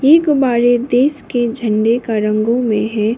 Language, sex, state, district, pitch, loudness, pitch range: Hindi, female, Sikkim, Gangtok, 240 Hz, -15 LUFS, 220-250 Hz